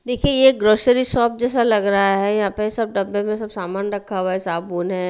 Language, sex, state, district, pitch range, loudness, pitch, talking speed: Hindi, female, Haryana, Rohtak, 195-235 Hz, -19 LUFS, 205 Hz, 235 wpm